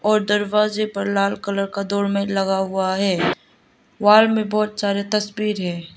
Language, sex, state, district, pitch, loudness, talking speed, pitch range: Hindi, female, Arunachal Pradesh, Lower Dibang Valley, 200 Hz, -20 LUFS, 170 wpm, 195-210 Hz